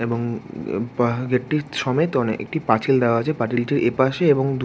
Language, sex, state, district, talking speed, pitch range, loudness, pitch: Bengali, male, West Bengal, Jhargram, 180 wpm, 120-140 Hz, -21 LUFS, 125 Hz